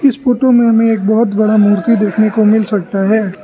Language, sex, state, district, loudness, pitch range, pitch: Hindi, male, Arunachal Pradesh, Lower Dibang Valley, -12 LUFS, 210-230 Hz, 215 Hz